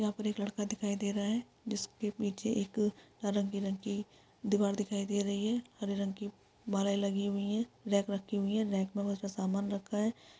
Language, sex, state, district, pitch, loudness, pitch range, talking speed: Hindi, female, Chhattisgarh, Sukma, 205 Hz, -35 LUFS, 200-210 Hz, 215 wpm